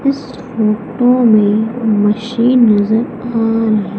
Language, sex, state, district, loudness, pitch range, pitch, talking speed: Hindi, female, Madhya Pradesh, Umaria, -13 LUFS, 215-245 Hz, 225 Hz, 105 wpm